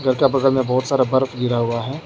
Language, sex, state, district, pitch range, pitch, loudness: Hindi, male, Arunachal Pradesh, Lower Dibang Valley, 125-135 Hz, 130 Hz, -19 LUFS